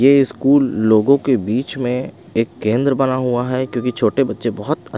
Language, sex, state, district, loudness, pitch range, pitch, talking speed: Hindi, male, Bihar, Kaimur, -17 LUFS, 120-135 Hz, 130 Hz, 180 wpm